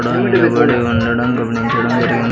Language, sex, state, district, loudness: Telugu, male, Andhra Pradesh, Sri Satya Sai, -15 LUFS